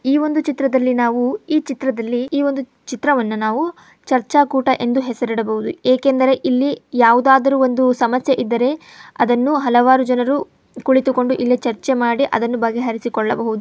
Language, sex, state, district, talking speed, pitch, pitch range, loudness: Kannada, female, Karnataka, Chamarajanagar, 125 wpm, 255 Hz, 240-270 Hz, -17 LUFS